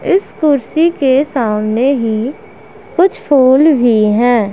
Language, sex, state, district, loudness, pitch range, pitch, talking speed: Hindi, female, Punjab, Pathankot, -12 LUFS, 235-320 Hz, 270 Hz, 120 wpm